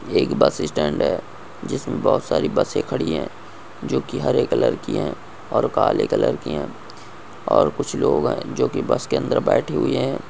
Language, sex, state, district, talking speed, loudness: Hindi, male, Goa, North and South Goa, 190 wpm, -21 LUFS